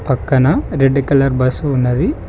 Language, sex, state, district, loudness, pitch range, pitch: Telugu, male, Telangana, Mahabubabad, -14 LUFS, 130-140 Hz, 135 Hz